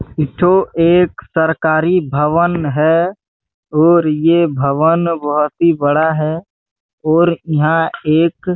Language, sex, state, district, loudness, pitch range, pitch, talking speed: Hindi, male, Chhattisgarh, Bastar, -14 LUFS, 150-170 Hz, 160 Hz, 110 wpm